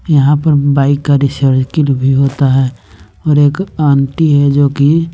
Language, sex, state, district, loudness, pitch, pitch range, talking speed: Hindi, male, Bihar, West Champaran, -11 LUFS, 140 Hz, 135-150 Hz, 165 wpm